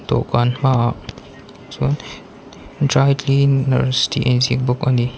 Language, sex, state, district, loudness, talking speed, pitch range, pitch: Mizo, male, Mizoram, Aizawl, -17 LUFS, 125 wpm, 125-135 Hz, 130 Hz